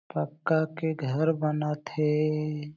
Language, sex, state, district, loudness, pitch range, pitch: Chhattisgarhi, male, Chhattisgarh, Jashpur, -28 LUFS, 150-155 Hz, 150 Hz